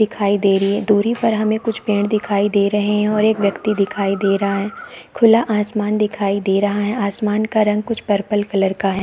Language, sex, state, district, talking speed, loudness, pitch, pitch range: Hindi, female, Chhattisgarh, Bastar, 240 wpm, -17 LUFS, 210 Hz, 200-215 Hz